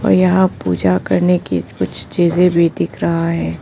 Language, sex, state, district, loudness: Hindi, female, Arunachal Pradesh, Papum Pare, -15 LUFS